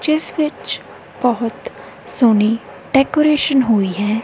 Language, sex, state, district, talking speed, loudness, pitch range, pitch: Punjabi, female, Punjab, Kapurthala, 100 wpm, -17 LUFS, 220-300 Hz, 245 Hz